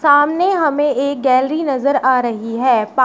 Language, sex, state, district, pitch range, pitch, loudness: Hindi, female, Uttar Pradesh, Shamli, 255-290 Hz, 275 Hz, -15 LUFS